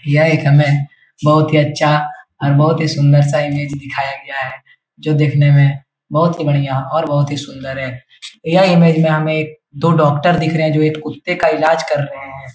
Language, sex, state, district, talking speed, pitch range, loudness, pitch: Hindi, male, Bihar, Jahanabad, 200 wpm, 140-155 Hz, -14 LUFS, 150 Hz